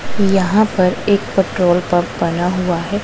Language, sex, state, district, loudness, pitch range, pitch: Hindi, female, Punjab, Pathankot, -16 LUFS, 175-200 Hz, 185 Hz